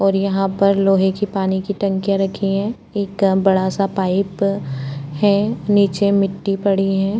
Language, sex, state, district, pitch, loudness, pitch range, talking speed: Hindi, female, Chhattisgarh, Korba, 195 Hz, -18 LUFS, 190-200 Hz, 150 wpm